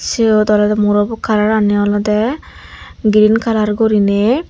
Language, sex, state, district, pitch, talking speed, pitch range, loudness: Chakma, female, Tripura, Unakoti, 215 Hz, 120 wpm, 210-220 Hz, -13 LUFS